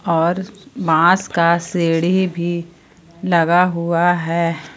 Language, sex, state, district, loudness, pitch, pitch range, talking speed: Hindi, female, Jharkhand, Palamu, -17 LUFS, 170 Hz, 170-175 Hz, 100 wpm